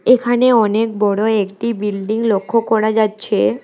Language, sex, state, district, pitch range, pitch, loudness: Bengali, female, West Bengal, Alipurduar, 210-230 Hz, 220 Hz, -16 LUFS